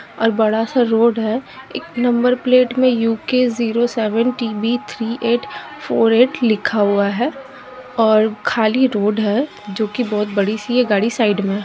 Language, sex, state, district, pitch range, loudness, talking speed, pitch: Kumaoni, female, Uttarakhand, Tehri Garhwal, 215-250 Hz, -17 LUFS, 180 wpm, 230 Hz